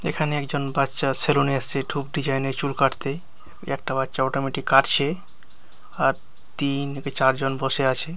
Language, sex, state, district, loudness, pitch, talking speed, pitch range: Bengali, male, West Bengal, Dakshin Dinajpur, -24 LUFS, 135 Hz, 155 wpm, 135-145 Hz